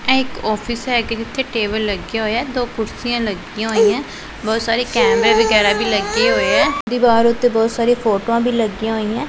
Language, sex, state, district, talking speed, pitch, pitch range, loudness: Punjabi, female, Punjab, Pathankot, 185 wpm, 230 Hz, 220-240 Hz, -17 LUFS